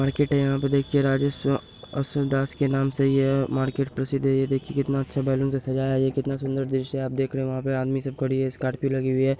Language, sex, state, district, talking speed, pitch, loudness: Hindi, male, Bihar, Saharsa, 285 wpm, 135 Hz, -25 LUFS